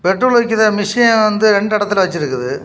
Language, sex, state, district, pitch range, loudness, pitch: Tamil, male, Tamil Nadu, Kanyakumari, 190-220 Hz, -13 LUFS, 210 Hz